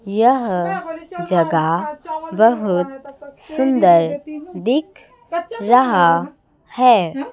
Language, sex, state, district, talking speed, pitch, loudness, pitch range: Hindi, female, Chhattisgarh, Raipur, 55 wpm, 250 Hz, -17 LUFS, 180-300 Hz